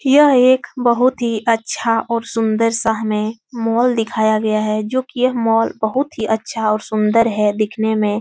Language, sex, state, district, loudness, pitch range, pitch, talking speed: Hindi, female, Uttar Pradesh, Etah, -17 LUFS, 220-240 Hz, 225 Hz, 185 wpm